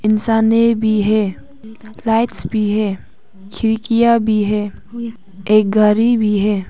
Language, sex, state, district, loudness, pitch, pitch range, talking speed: Hindi, female, Arunachal Pradesh, Papum Pare, -15 LUFS, 215 Hz, 210-225 Hz, 115 wpm